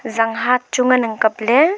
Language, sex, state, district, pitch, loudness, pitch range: Wancho, female, Arunachal Pradesh, Longding, 240 Hz, -17 LUFS, 225-250 Hz